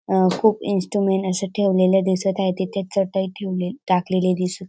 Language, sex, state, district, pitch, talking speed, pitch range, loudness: Marathi, female, Maharashtra, Dhule, 190 Hz, 155 wpm, 185-195 Hz, -21 LUFS